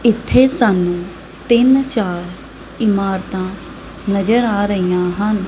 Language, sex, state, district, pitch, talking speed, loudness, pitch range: Punjabi, female, Punjab, Kapurthala, 200 Hz, 85 wpm, -16 LUFS, 185-230 Hz